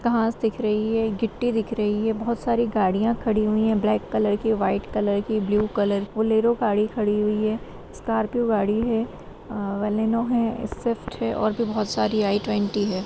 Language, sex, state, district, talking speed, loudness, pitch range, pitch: Kumaoni, female, Uttarakhand, Uttarkashi, 200 wpm, -23 LUFS, 210-225 Hz, 220 Hz